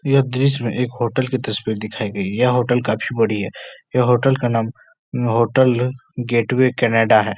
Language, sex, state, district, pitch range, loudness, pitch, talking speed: Hindi, male, Uttar Pradesh, Etah, 110-130 Hz, -19 LUFS, 120 Hz, 185 wpm